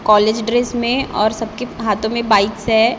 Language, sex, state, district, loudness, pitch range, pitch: Hindi, female, Maharashtra, Gondia, -17 LUFS, 215-240 Hz, 225 Hz